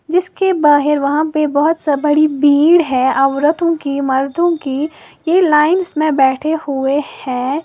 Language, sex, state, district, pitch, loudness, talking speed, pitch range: Hindi, female, Uttar Pradesh, Lalitpur, 300 Hz, -14 LUFS, 150 wpm, 280-325 Hz